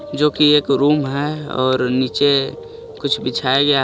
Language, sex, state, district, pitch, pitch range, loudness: Hindi, male, Jharkhand, Garhwa, 145 Hz, 135-150 Hz, -17 LUFS